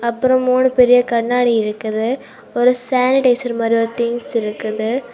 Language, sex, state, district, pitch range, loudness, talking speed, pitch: Tamil, female, Tamil Nadu, Kanyakumari, 230-250 Hz, -16 LUFS, 130 wpm, 240 Hz